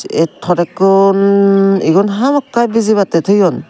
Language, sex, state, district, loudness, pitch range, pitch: Chakma, male, Tripura, Dhalai, -12 LUFS, 190-205 Hz, 195 Hz